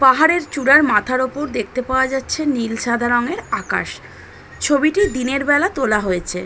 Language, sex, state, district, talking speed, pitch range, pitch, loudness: Bengali, female, West Bengal, Kolkata, 160 wpm, 240-295 Hz, 260 Hz, -17 LUFS